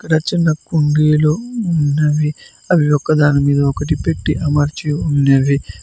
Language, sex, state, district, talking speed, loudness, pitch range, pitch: Telugu, male, Telangana, Mahabubabad, 105 wpm, -15 LUFS, 145-155 Hz, 150 Hz